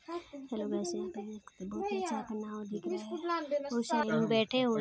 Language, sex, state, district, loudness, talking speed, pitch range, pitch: Hindi, female, Chhattisgarh, Balrampur, -35 LUFS, 235 wpm, 205-265 Hz, 220 Hz